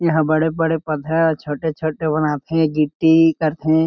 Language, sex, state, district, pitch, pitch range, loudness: Chhattisgarhi, male, Chhattisgarh, Jashpur, 160 Hz, 155-160 Hz, -18 LUFS